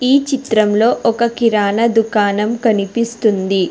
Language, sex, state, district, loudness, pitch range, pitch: Telugu, female, Telangana, Hyderabad, -15 LUFS, 210-235 Hz, 225 Hz